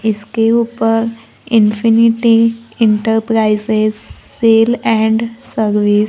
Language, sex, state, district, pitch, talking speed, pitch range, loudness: Hindi, female, Maharashtra, Gondia, 225 Hz, 80 wpm, 215-230 Hz, -13 LUFS